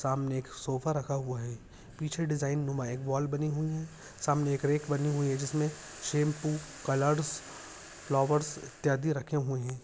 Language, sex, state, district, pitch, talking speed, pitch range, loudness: Hindi, male, Rajasthan, Nagaur, 145 Hz, 170 wpm, 135-150 Hz, -32 LUFS